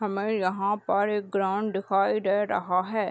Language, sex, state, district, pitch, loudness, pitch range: Hindi, female, Uttar Pradesh, Deoria, 200 Hz, -26 LUFS, 195-210 Hz